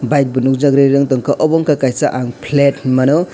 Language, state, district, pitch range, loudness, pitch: Kokborok, Tripura, West Tripura, 130-150 Hz, -14 LUFS, 140 Hz